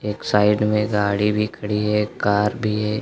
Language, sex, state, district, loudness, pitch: Hindi, male, Uttar Pradesh, Lucknow, -20 LUFS, 105 Hz